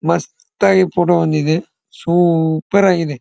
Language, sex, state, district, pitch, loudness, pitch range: Kannada, male, Karnataka, Dharwad, 175 Hz, -15 LUFS, 160-190 Hz